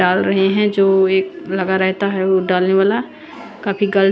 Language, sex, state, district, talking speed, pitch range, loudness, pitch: Hindi, female, Chandigarh, Chandigarh, 190 wpm, 190-200 Hz, -16 LUFS, 190 Hz